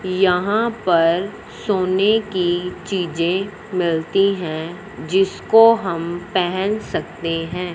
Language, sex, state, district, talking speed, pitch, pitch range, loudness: Hindi, male, Punjab, Fazilka, 95 wpm, 185 Hz, 175-200 Hz, -19 LUFS